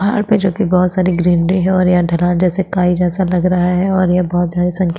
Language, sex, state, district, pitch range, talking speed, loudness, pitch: Hindi, female, Chhattisgarh, Sukma, 180-185 Hz, 265 wpm, -14 LUFS, 180 Hz